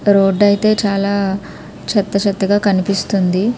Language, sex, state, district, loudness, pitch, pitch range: Telugu, female, Andhra Pradesh, Krishna, -15 LUFS, 200 Hz, 195-205 Hz